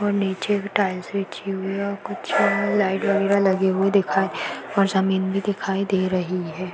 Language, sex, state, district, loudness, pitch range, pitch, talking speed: Hindi, female, Uttar Pradesh, Varanasi, -22 LUFS, 190-200 Hz, 195 Hz, 185 wpm